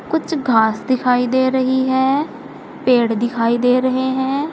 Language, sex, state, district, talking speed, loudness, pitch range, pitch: Hindi, female, Uttar Pradesh, Saharanpur, 145 wpm, -17 LUFS, 245-265 Hz, 255 Hz